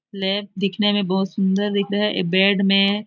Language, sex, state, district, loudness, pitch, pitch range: Hindi, female, Chhattisgarh, Raigarh, -20 LUFS, 200 Hz, 195-205 Hz